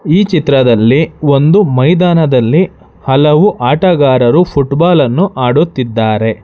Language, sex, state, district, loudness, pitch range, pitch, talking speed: Kannada, male, Karnataka, Bangalore, -10 LUFS, 130-175 Hz, 145 Hz, 85 wpm